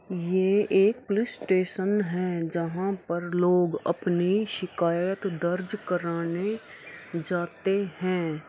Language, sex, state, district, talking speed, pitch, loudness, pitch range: Hindi, female, Bihar, Araria, 100 wpm, 180 Hz, -27 LUFS, 175-195 Hz